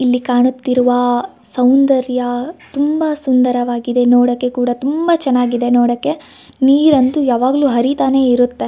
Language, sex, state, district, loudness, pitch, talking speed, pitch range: Kannada, female, Karnataka, Gulbarga, -14 LUFS, 250 Hz, 105 wpm, 245-275 Hz